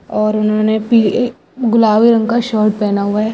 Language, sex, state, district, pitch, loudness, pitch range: Hindi, female, Andhra Pradesh, Anantapur, 220 Hz, -14 LUFS, 215-230 Hz